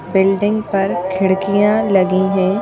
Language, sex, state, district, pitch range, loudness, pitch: Hindi, female, Madhya Pradesh, Bhopal, 190-200 Hz, -15 LUFS, 195 Hz